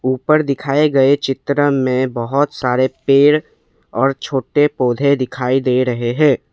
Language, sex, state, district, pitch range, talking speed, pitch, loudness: Hindi, male, Assam, Kamrup Metropolitan, 130-145 Hz, 135 wpm, 135 Hz, -16 LUFS